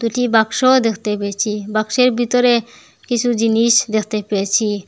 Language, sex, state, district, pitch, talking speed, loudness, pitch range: Bengali, female, Assam, Hailakandi, 225 Hz, 125 wpm, -16 LUFS, 210-240 Hz